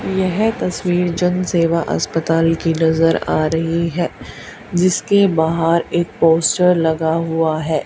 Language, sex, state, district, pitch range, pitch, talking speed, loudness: Hindi, female, Haryana, Charkhi Dadri, 165-180 Hz, 165 Hz, 120 wpm, -17 LUFS